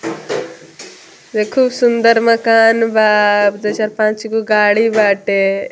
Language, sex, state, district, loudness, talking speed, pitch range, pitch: Bhojpuri, female, Bihar, Muzaffarpur, -13 LUFS, 125 wpm, 210-230 Hz, 215 Hz